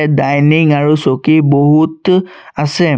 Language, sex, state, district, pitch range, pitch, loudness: Assamese, male, Assam, Sonitpur, 145-160 Hz, 150 Hz, -11 LUFS